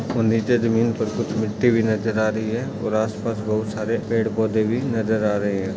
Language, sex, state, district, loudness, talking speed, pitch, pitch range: Hindi, male, Maharashtra, Chandrapur, -22 LUFS, 230 wpm, 110 Hz, 110-115 Hz